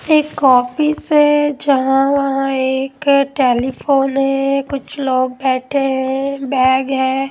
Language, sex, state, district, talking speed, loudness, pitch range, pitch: Hindi, female, Odisha, Malkangiri, 115 wpm, -15 LUFS, 265-280 Hz, 270 Hz